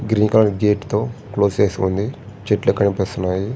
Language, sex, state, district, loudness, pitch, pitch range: Telugu, male, Andhra Pradesh, Srikakulam, -19 LUFS, 105 Hz, 100-110 Hz